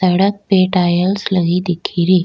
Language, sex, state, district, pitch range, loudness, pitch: Rajasthani, female, Rajasthan, Nagaur, 175-190 Hz, -15 LUFS, 185 Hz